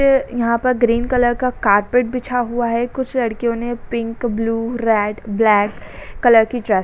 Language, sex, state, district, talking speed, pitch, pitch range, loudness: Hindi, female, Uttar Pradesh, Jalaun, 185 wpm, 235 Hz, 225-245 Hz, -18 LUFS